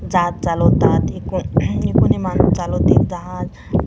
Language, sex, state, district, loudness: Marathi, female, Maharashtra, Washim, -17 LUFS